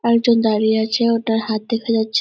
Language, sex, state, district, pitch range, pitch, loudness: Bengali, female, West Bengal, Purulia, 220-230 Hz, 225 Hz, -18 LUFS